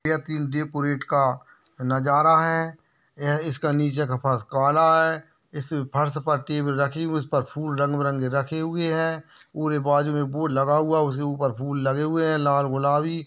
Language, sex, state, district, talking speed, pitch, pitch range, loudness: Hindi, male, Maharashtra, Nagpur, 165 wpm, 150 Hz, 140-155 Hz, -23 LUFS